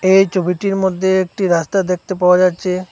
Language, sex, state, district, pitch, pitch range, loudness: Bengali, male, Assam, Hailakandi, 185 Hz, 180-190 Hz, -15 LUFS